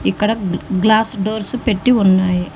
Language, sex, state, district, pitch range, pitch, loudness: Telugu, female, Telangana, Mahabubabad, 185-220 Hz, 210 Hz, -16 LUFS